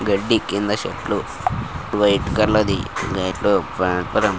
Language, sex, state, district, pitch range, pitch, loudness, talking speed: Telugu, male, Andhra Pradesh, Guntur, 95-105 Hz, 100 Hz, -20 LUFS, 80 wpm